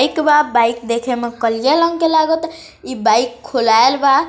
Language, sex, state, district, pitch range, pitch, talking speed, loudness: Hindi, female, Bihar, East Champaran, 235-315 Hz, 265 Hz, 180 wpm, -15 LUFS